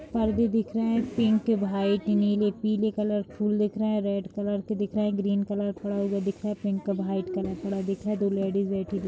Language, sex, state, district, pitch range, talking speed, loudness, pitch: Hindi, female, Uttar Pradesh, Jalaun, 200-215 Hz, 240 wpm, -27 LUFS, 205 Hz